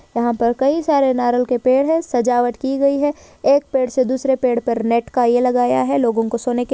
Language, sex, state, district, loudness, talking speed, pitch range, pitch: Hindi, female, Maharashtra, Sindhudurg, -17 LUFS, 240 wpm, 240-270 Hz, 250 Hz